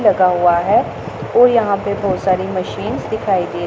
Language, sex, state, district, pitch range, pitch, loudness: Hindi, female, Punjab, Pathankot, 185-200 Hz, 190 Hz, -16 LUFS